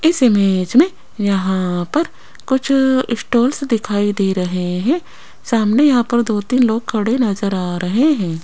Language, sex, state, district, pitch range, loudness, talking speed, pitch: Hindi, female, Rajasthan, Jaipur, 195-260 Hz, -16 LUFS, 155 wpm, 225 Hz